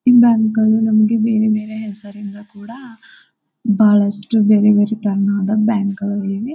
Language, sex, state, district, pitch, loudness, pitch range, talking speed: Kannada, female, Karnataka, Bijapur, 215 Hz, -15 LUFS, 205-225 Hz, 135 wpm